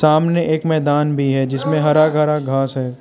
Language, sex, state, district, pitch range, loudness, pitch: Hindi, male, Arunachal Pradesh, Lower Dibang Valley, 135-155 Hz, -16 LUFS, 150 Hz